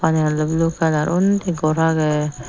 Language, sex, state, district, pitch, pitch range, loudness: Chakma, female, Tripura, Dhalai, 160 Hz, 155-165 Hz, -19 LUFS